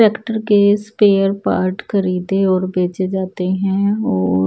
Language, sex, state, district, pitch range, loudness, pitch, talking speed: Hindi, male, Odisha, Nuapada, 185-205 Hz, -17 LUFS, 195 Hz, 135 wpm